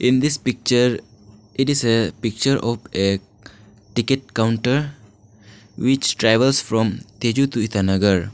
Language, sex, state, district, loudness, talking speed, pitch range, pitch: English, male, Arunachal Pradesh, Lower Dibang Valley, -20 LUFS, 120 wpm, 105-125 Hz, 115 Hz